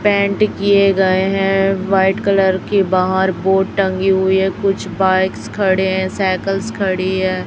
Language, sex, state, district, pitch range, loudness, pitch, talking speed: Hindi, female, Chhattisgarh, Raipur, 190-195 Hz, -15 LUFS, 190 Hz, 150 wpm